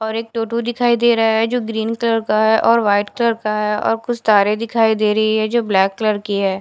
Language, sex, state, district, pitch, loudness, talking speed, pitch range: Hindi, female, Bihar, Katihar, 220 Hz, -17 LUFS, 270 wpm, 210-230 Hz